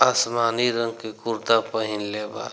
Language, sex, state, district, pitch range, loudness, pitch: Bhojpuri, male, Bihar, Gopalganj, 105-115 Hz, -24 LUFS, 115 Hz